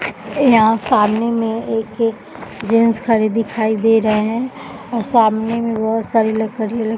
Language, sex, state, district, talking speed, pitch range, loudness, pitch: Hindi, female, Bihar, Jahanabad, 145 wpm, 220-230 Hz, -16 LUFS, 225 Hz